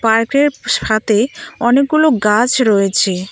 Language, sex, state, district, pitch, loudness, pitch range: Bengali, female, West Bengal, Cooch Behar, 230 Hz, -14 LUFS, 210-275 Hz